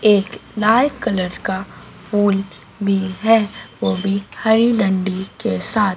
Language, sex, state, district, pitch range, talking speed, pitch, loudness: Hindi, female, Madhya Pradesh, Dhar, 190-220 Hz, 130 wpm, 200 Hz, -18 LUFS